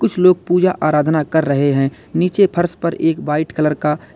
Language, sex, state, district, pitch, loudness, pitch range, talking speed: Hindi, male, Uttar Pradesh, Lalitpur, 155 Hz, -16 LUFS, 150-175 Hz, 200 wpm